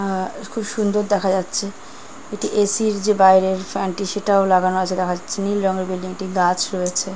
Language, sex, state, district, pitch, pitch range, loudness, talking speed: Bengali, female, West Bengal, Kolkata, 190 Hz, 185-205 Hz, -19 LUFS, 200 wpm